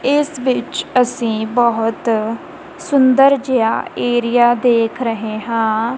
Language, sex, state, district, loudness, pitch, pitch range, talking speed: Punjabi, female, Punjab, Kapurthala, -16 LUFS, 240 Hz, 225-270 Hz, 100 wpm